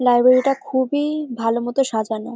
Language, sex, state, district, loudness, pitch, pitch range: Bengali, female, West Bengal, Dakshin Dinajpur, -19 LUFS, 255 Hz, 235-270 Hz